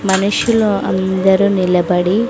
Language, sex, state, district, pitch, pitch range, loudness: Telugu, female, Andhra Pradesh, Sri Satya Sai, 190 Hz, 185-200 Hz, -14 LUFS